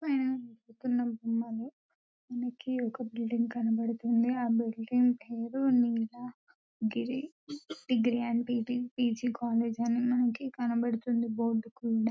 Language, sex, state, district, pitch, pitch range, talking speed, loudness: Telugu, female, Telangana, Nalgonda, 235 Hz, 230-245 Hz, 90 wpm, -32 LUFS